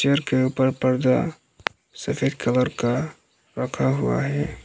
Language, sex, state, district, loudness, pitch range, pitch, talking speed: Hindi, male, Arunachal Pradesh, Lower Dibang Valley, -23 LUFS, 120-140 Hz, 130 Hz, 130 wpm